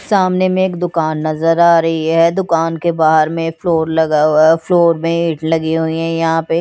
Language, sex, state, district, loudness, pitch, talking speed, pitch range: Hindi, female, Chandigarh, Chandigarh, -14 LUFS, 165 Hz, 210 wpm, 160-170 Hz